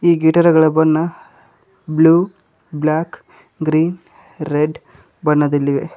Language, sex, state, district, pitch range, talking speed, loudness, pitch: Kannada, male, Karnataka, Koppal, 155-170 Hz, 80 wpm, -16 LUFS, 160 Hz